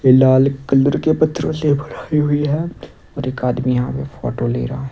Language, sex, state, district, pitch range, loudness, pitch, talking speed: Hindi, male, Odisha, Nuapada, 125-150 Hz, -18 LUFS, 135 Hz, 195 wpm